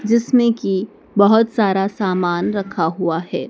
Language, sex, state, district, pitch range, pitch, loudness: Hindi, female, Madhya Pradesh, Dhar, 180-220 Hz, 200 Hz, -17 LUFS